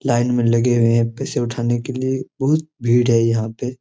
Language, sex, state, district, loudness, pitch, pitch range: Hindi, male, Jharkhand, Jamtara, -19 LUFS, 120 Hz, 115-130 Hz